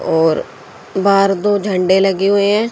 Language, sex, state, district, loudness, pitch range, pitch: Hindi, female, Haryana, Charkhi Dadri, -14 LUFS, 190-200 Hz, 195 Hz